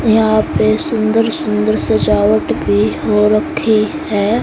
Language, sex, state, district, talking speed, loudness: Hindi, female, Haryana, Jhajjar, 120 wpm, -14 LUFS